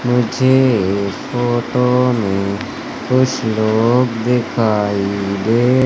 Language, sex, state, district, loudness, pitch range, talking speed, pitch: Hindi, male, Madhya Pradesh, Katni, -16 LUFS, 100-125 Hz, 70 wpm, 120 Hz